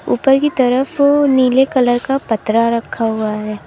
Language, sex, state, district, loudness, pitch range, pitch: Hindi, female, Uttar Pradesh, Lalitpur, -14 LUFS, 225-270 Hz, 250 Hz